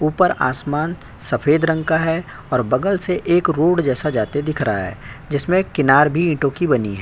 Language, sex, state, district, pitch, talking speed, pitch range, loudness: Hindi, male, Uttar Pradesh, Jyotiba Phule Nagar, 150 Hz, 195 wpm, 130-170 Hz, -18 LUFS